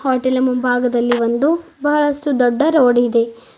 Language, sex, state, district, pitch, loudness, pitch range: Kannada, female, Karnataka, Bidar, 255 Hz, -16 LUFS, 240-290 Hz